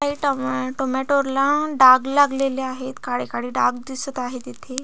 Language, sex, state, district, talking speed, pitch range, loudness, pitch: Marathi, female, Maharashtra, Solapur, 160 wpm, 250-275 Hz, -20 LUFS, 265 Hz